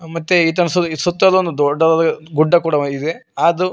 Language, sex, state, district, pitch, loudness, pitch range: Kannada, male, Karnataka, Koppal, 165 Hz, -16 LUFS, 155-175 Hz